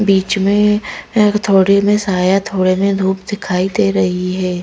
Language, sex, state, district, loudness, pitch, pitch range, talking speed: Hindi, female, Madhya Pradesh, Bhopal, -14 LUFS, 195 Hz, 185-205 Hz, 170 wpm